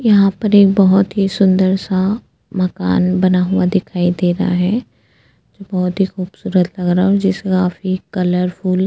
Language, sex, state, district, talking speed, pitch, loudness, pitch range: Hindi, female, Goa, North and South Goa, 160 wpm, 185 Hz, -15 LUFS, 180-195 Hz